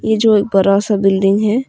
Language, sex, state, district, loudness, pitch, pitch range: Hindi, female, Arunachal Pradesh, Longding, -13 LUFS, 205 Hz, 195-220 Hz